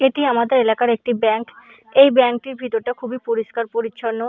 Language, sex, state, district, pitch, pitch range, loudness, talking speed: Bengali, female, West Bengal, Purulia, 235 Hz, 230-255 Hz, -18 LUFS, 165 wpm